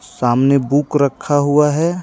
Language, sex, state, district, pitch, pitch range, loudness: Hindi, male, Jharkhand, Ranchi, 145 Hz, 140-150 Hz, -15 LUFS